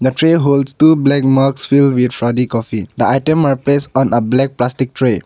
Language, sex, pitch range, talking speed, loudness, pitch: English, male, 125-140 Hz, 215 wpm, -13 LUFS, 135 Hz